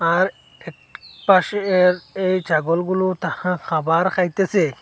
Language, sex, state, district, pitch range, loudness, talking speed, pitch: Bengali, male, Assam, Hailakandi, 170-185 Hz, -19 LUFS, 110 wpm, 180 Hz